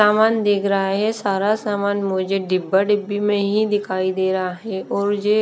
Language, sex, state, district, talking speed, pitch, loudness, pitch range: Hindi, female, Bihar, West Champaran, 190 wpm, 200 Hz, -20 LUFS, 195-210 Hz